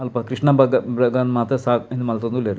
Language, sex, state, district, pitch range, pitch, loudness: Tulu, male, Karnataka, Dakshina Kannada, 120-130 Hz, 125 Hz, -19 LUFS